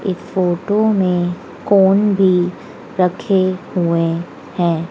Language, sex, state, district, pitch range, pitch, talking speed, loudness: Hindi, female, Madhya Pradesh, Dhar, 175-195 Hz, 185 Hz, 100 wpm, -16 LUFS